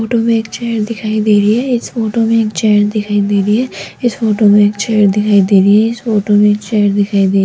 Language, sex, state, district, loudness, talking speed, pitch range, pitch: Hindi, female, Rajasthan, Jaipur, -12 LUFS, 275 wpm, 205-225 Hz, 215 Hz